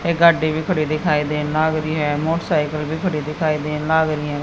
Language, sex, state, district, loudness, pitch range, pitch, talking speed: Hindi, female, Haryana, Jhajjar, -19 LUFS, 150-160 Hz, 155 Hz, 230 wpm